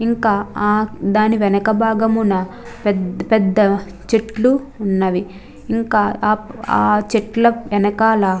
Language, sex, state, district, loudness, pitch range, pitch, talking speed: Telugu, female, Andhra Pradesh, Chittoor, -17 LUFS, 200-225 Hz, 215 Hz, 100 wpm